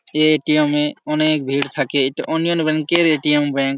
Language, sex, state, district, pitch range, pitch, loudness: Bengali, male, West Bengal, Malda, 145-155 Hz, 150 Hz, -17 LUFS